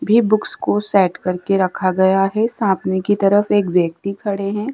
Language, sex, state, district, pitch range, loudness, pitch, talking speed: Hindi, female, Madhya Pradesh, Dhar, 185-210 Hz, -17 LUFS, 195 Hz, 190 wpm